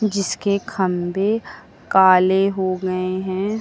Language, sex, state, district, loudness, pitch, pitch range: Hindi, female, Uttar Pradesh, Lucknow, -19 LUFS, 190 Hz, 185-200 Hz